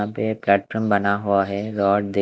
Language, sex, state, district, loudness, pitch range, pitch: Hindi, male, Punjab, Kapurthala, -21 LUFS, 100-105 Hz, 100 Hz